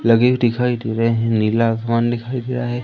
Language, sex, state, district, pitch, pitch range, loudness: Hindi, male, Madhya Pradesh, Umaria, 115 Hz, 115-120 Hz, -18 LUFS